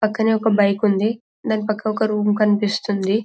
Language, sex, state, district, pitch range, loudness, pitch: Telugu, female, Telangana, Karimnagar, 205-220 Hz, -19 LUFS, 215 Hz